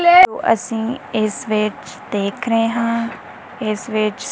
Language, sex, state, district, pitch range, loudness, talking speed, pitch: Punjabi, female, Punjab, Kapurthala, 215-235 Hz, -18 LUFS, 110 wpm, 225 Hz